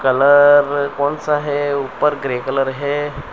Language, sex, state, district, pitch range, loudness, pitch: Hindi, male, Gujarat, Valsad, 135-145 Hz, -16 LUFS, 145 Hz